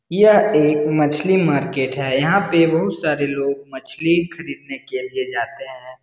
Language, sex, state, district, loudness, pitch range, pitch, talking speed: Hindi, male, Bihar, Jahanabad, -18 LUFS, 140-185 Hz, 150 Hz, 170 wpm